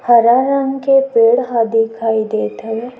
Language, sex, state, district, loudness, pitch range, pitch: Chhattisgarhi, female, Chhattisgarh, Sukma, -14 LUFS, 225-260 Hz, 235 Hz